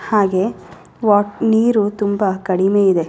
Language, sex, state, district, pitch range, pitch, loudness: Kannada, female, Karnataka, Raichur, 190-215 Hz, 205 Hz, -16 LUFS